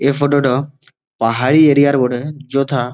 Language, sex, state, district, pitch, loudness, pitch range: Bengali, male, West Bengal, Malda, 140 Hz, -15 LUFS, 125-145 Hz